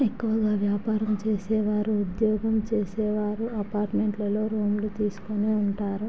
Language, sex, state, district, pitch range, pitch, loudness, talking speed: Telugu, female, Andhra Pradesh, Chittoor, 205-215 Hz, 210 Hz, -26 LUFS, 90 wpm